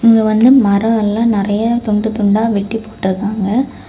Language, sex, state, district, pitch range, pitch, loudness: Tamil, female, Tamil Nadu, Kanyakumari, 205-230 Hz, 220 Hz, -14 LUFS